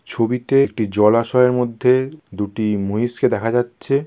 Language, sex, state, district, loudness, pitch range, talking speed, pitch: Bengali, male, West Bengal, Kolkata, -18 LUFS, 110-125 Hz, 120 wpm, 120 Hz